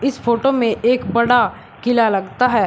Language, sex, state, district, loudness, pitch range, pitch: Hindi, male, Uttar Pradesh, Shamli, -17 LUFS, 230-250 Hz, 235 Hz